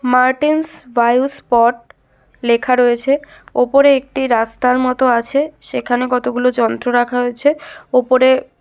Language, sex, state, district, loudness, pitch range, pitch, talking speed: Bengali, female, West Bengal, Jalpaiguri, -15 LUFS, 245-275 Hz, 250 Hz, 110 wpm